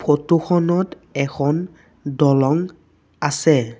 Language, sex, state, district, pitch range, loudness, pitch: Assamese, male, Assam, Sonitpur, 140-170 Hz, -19 LUFS, 150 Hz